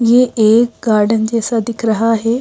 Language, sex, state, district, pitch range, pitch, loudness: Hindi, female, Madhya Pradesh, Bhopal, 220-235 Hz, 230 Hz, -14 LUFS